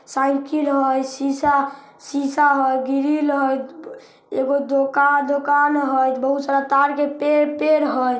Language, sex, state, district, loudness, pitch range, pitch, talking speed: Maithili, female, Bihar, Samastipur, -19 LUFS, 275-290 Hz, 280 Hz, 130 wpm